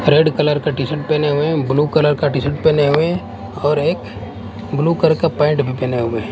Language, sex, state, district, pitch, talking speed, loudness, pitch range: Hindi, male, Bihar, West Champaran, 145 Hz, 220 wpm, -17 LUFS, 130-155 Hz